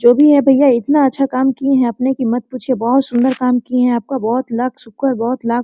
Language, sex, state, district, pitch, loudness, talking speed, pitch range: Hindi, female, Jharkhand, Sahebganj, 255 Hz, -15 LUFS, 265 wpm, 240-270 Hz